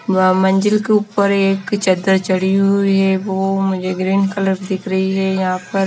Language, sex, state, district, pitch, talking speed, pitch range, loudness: Hindi, female, Himachal Pradesh, Shimla, 195 Hz, 185 wpm, 190-195 Hz, -16 LUFS